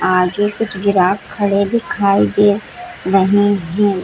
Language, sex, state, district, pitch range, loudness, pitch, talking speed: Hindi, female, Jharkhand, Sahebganj, 190-205 Hz, -15 LUFS, 200 Hz, 120 wpm